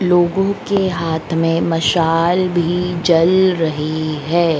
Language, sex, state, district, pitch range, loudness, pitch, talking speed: Hindi, female, Madhya Pradesh, Dhar, 165-180 Hz, -16 LUFS, 170 Hz, 115 wpm